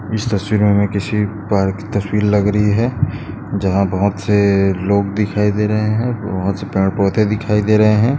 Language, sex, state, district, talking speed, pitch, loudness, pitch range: Hindi, male, Maharashtra, Chandrapur, 195 wpm, 105 Hz, -16 LUFS, 100-105 Hz